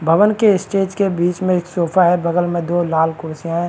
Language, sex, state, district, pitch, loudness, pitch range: Hindi, male, Maharashtra, Chandrapur, 175 Hz, -17 LUFS, 170-190 Hz